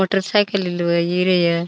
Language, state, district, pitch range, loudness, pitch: Bhili, Maharashtra, Dhule, 170-195 Hz, -18 LUFS, 180 Hz